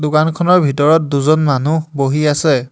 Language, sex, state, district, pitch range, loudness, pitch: Assamese, male, Assam, Hailakandi, 145-160 Hz, -14 LUFS, 150 Hz